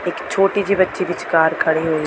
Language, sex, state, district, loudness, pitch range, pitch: Punjabi, female, Delhi, New Delhi, -18 LUFS, 160-195 Hz, 175 Hz